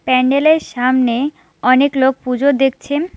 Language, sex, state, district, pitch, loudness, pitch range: Bengali, female, West Bengal, Alipurduar, 265 Hz, -15 LUFS, 255-285 Hz